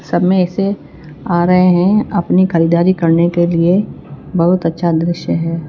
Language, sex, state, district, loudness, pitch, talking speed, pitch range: Hindi, female, Chhattisgarh, Raipur, -13 LUFS, 175 Hz, 150 wpm, 165-185 Hz